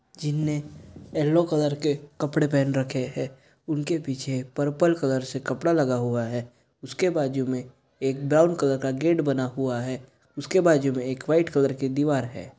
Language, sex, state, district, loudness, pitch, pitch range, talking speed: Hindi, male, Bihar, Gopalganj, -25 LUFS, 140 Hz, 130-150 Hz, 175 wpm